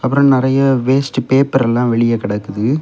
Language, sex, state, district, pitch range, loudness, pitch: Tamil, male, Tamil Nadu, Kanyakumari, 115-135 Hz, -14 LUFS, 130 Hz